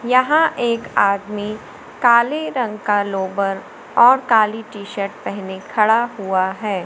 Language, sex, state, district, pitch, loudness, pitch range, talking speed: Hindi, female, Madhya Pradesh, Umaria, 215 Hz, -18 LUFS, 200-235 Hz, 130 wpm